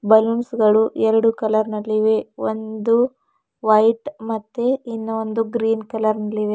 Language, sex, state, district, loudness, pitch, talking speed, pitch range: Kannada, female, Karnataka, Bidar, -20 LUFS, 220 Hz, 130 wpm, 215-230 Hz